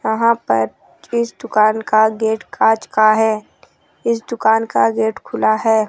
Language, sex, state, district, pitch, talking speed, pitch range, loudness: Hindi, male, Rajasthan, Jaipur, 220 Hz, 155 wpm, 215-225 Hz, -16 LUFS